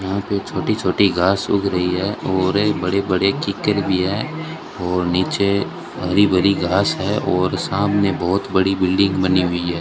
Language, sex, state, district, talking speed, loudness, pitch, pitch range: Hindi, male, Rajasthan, Bikaner, 170 wpm, -19 LUFS, 95 Hz, 90-100 Hz